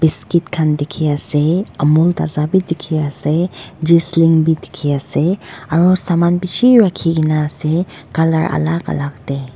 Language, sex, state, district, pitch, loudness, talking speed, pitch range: Nagamese, female, Nagaland, Dimapur, 160 Hz, -15 LUFS, 115 wpm, 150-170 Hz